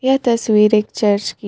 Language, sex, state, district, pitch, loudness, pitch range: Hindi, female, Jharkhand, Palamu, 215 Hz, -15 LUFS, 210-235 Hz